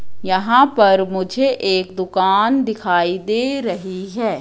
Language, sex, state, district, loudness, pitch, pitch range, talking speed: Hindi, female, Madhya Pradesh, Katni, -17 LUFS, 195 Hz, 185-235 Hz, 120 wpm